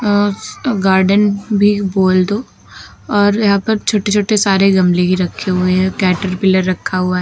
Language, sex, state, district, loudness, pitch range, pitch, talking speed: Hindi, female, Uttar Pradesh, Lucknow, -14 LUFS, 185-205 Hz, 195 Hz, 165 wpm